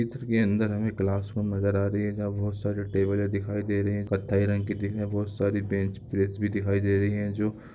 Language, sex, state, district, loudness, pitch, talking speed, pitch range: Hindi, male, Chhattisgarh, Korba, -28 LUFS, 100 Hz, 240 wpm, 100-105 Hz